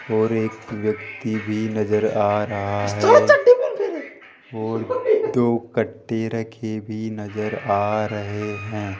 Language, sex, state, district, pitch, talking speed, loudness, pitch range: Hindi, male, Rajasthan, Jaipur, 110 Hz, 115 wpm, -21 LUFS, 105-115 Hz